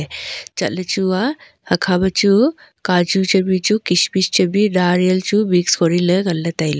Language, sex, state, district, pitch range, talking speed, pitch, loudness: Wancho, female, Arunachal Pradesh, Longding, 180-200 Hz, 195 wpm, 185 Hz, -16 LUFS